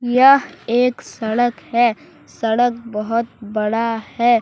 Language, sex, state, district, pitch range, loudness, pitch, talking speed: Hindi, male, Jharkhand, Deoghar, 225-245 Hz, -18 LUFS, 235 Hz, 110 wpm